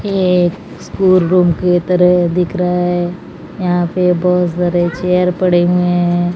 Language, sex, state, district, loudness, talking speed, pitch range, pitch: Hindi, female, Odisha, Malkangiri, -14 LUFS, 160 wpm, 175-180 Hz, 180 Hz